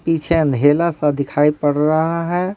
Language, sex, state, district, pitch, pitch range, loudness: Hindi, male, Jharkhand, Ranchi, 155 Hz, 145-170 Hz, -17 LUFS